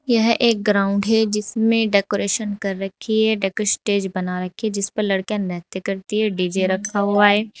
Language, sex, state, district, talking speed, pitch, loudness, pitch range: Hindi, female, Uttar Pradesh, Saharanpur, 190 wpm, 205 Hz, -20 LUFS, 195-220 Hz